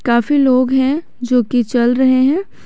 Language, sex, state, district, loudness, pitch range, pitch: Hindi, male, Jharkhand, Garhwa, -14 LUFS, 245-270 Hz, 255 Hz